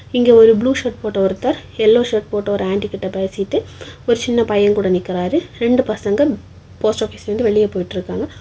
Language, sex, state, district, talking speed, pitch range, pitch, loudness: Tamil, female, Tamil Nadu, Kanyakumari, 180 wpm, 195-240 Hz, 215 Hz, -17 LUFS